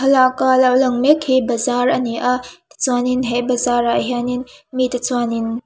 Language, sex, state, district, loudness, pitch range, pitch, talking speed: Mizo, female, Mizoram, Aizawl, -17 LUFS, 245-260 Hz, 250 Hz, 170 wpm